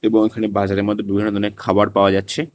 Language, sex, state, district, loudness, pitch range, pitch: Bengali, male, Tripura, West Tripura, -18 LUFS, 100-110 Hz, 105 Hz